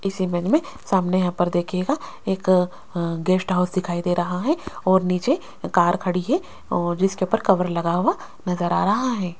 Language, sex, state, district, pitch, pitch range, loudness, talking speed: Hindi, female, Rajasthan, Jaipur, 185 Hz, 175-195 Hz, -22 LUFS, 190 wpm